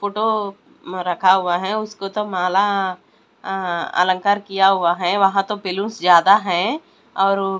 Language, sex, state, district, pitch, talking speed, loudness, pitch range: Hindi, male, Delhi, New Delhi, 195 Hz, 140 wpm, -18 LUFS, 180-205 Hz